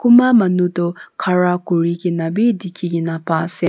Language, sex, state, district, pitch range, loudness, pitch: Nagamese, female, Nagaland, Kohima, 170-185 Hz, -17 LUFS, 175 Hz